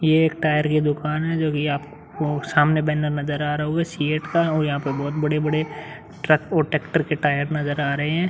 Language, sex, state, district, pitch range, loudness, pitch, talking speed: Hindi, male, Uttar Pradesh, Muzaffarnagar, 150-155 Hz, -22 LUFS, 150 Hz, 215 wpm